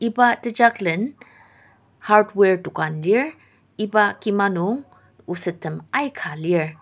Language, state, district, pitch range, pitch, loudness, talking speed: Ao, Nagaland, Dimapur, 175-235 Hz, 210 Hz, -21 LUFS, 95 wpm